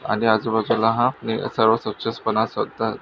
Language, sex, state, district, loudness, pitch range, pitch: Marathi, male, Maharashtra, Nagpur, -21 LUFS, 110-115 Hz, 110 Hz